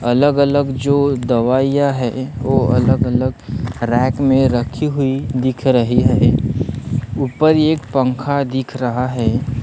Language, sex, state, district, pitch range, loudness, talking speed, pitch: Hindi, male, Maharashtra, Gondia, 125-135 Hz, -16 LUFS, 130 wpm, 130 Hz